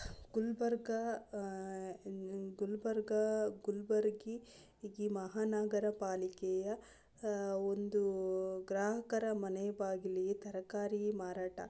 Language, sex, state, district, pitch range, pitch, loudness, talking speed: Kannada, female, Karnataka, Gulbarga, 190-215 Hz, 205 Hz, -39 LUFS, 65 wpm